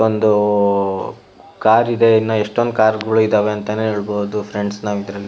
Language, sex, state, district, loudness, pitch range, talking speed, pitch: Kannada, male, Karnataka, Shimoga, -17 LUFS, 105-110 Hz, 150 wpm, 105 Hz